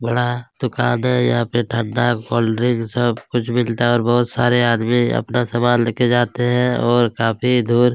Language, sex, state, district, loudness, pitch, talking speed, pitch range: Hindi, male, Chhattisgarh, Kabirdham, -18 LUFS, 120 Hz, 165 wpm, 115-120 Hz